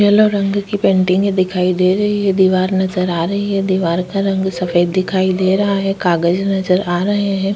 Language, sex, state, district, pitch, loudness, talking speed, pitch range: Hindi, female, Chhattisgarh, Kabirdham, 190 Hz, -15 LUFS, 215 wpm, 185-200 Hz